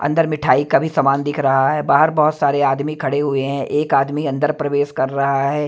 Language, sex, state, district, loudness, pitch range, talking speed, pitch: Hindi, male, Himachal Pradesh, Shimla, -17 LUFS, 135-150 Hz, 230 wpm, 145 Hz